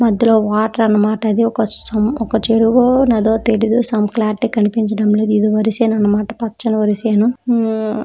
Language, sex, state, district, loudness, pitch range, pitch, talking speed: Telugu, female, Telangana, Karimnagar, -15 LUFS, 215-230 Hz, 220 Hz, 155 wpm